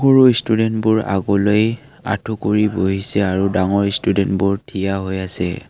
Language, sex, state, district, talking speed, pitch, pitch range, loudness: Assamese, male, Assam, Kamrup Metropolitan, 125 wpm, 100 Hz, 95-110 Hz, -18 LUFS